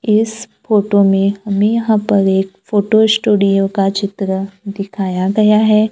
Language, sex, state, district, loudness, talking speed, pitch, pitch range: Hindi, female, Maharashtra, Gondia, -14 LUFS, 140 wpm, 200 Hz, 195-215 Hz